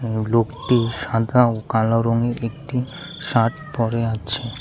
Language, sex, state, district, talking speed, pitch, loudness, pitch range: Bengali, male, Tripura, West Tripura, 130 wpm, 115 Hz, -21 LUFS, 115-125 Hz